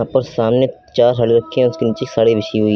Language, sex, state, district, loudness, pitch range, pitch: Hindi, male, Uttar Pradesh, Lucknow, -16 LUFS, 115-130 Hz, 115 Hz